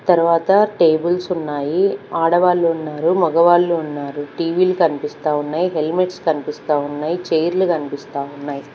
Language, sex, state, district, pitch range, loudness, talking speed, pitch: Telugu, female, Andhra Pradesh, Manyam, 150-175 Hz, -18 LUFS, 130 wpm, 165 Hz